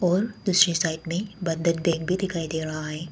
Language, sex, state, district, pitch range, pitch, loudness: Hindi, female, Arunachal Pradesh, Papum Pare, 160-185 Hz, 170 Hz, -25 LUFS